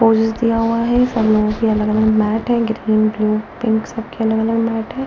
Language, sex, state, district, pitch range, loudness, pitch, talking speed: Hindi, female, Delhi, New Delhi, 215-230 Hz, -17 LUFS, 225 Hz, 215 wpm